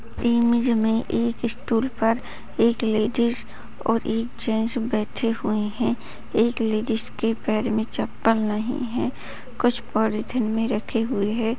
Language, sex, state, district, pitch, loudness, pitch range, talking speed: Hindi, female, Bihar, Kishanganj, 225 Hz, -24 LUFS, 220-235 Hz, 140 wpm